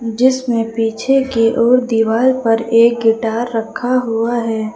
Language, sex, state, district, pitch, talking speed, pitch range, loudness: Hindi, female, Uttar Pradesh, Lucknow, 230 Hz, 140 wpm, 225-245 Hz, -15 LUFS